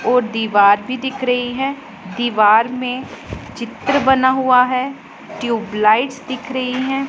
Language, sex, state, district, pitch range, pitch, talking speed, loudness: Hindi, female, Punjab, Pathankot, 230-265 Hz, 250 Hz, 135 wpm, -17 LUFS